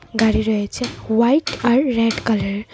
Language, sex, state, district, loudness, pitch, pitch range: Bengali, female, Tripura, West Tripura, -18 LUFS, 230 Hz, 220-245 Hz